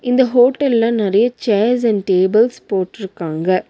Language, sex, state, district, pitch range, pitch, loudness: Tamil, female, Tamil Nadu, Nilgiris, 195-245 Hz, 220 Hz, -16 LUFS